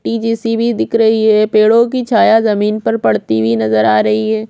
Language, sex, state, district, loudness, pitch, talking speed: Hindi, female, Chhattisgarh, Korba, -12 LUFS, 215 Hz, 200 wpm